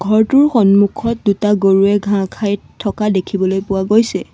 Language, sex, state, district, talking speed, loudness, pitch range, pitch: Assamese, female, Assam, Sonitpur, 140 wpm, -14 LUFS, 195-215 Hz, 205 Hz